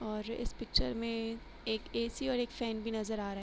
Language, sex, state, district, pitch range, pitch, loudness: Hindi, female, Uttar Pradesh, Hamirpur, 220-235 Hz, 225 Hz, -37 LUFS